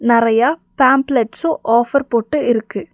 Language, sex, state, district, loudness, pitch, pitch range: Tamil, female, Tamil Nadu, Nilgiris, -15 LUFS, 240 Hz, 230-275 Hz